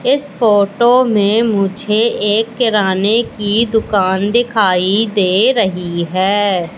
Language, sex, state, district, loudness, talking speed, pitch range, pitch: Hindi, female, Madhya Pradesh, Katni, -14 LUFS, 105 wpm, 190-225 Hz, 210 Hz